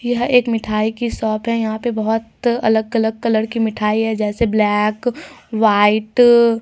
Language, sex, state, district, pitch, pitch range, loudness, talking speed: Hindi, female, Bihar, Katihar, 225 Hz, 215-235 Hz, -17 LUFS, 170 wpm